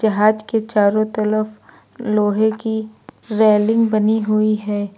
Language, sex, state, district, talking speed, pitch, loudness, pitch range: Hindi, female, Uttar Pradesh, Lucknow, 120 wpm, 215 Hz, -17 LUFS, 210-220 Hz